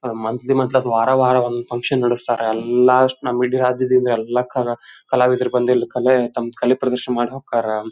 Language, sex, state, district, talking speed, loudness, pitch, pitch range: Kannada, male, Karnataka, Dharwad, 160 wpm, -18 LUFS, 125 Hz, 120-130 Hz